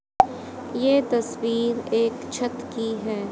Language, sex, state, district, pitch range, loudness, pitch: Hindi, female, Haryana, Jhajjar, 230-255 Hz, -24 LUFS, 235 Hz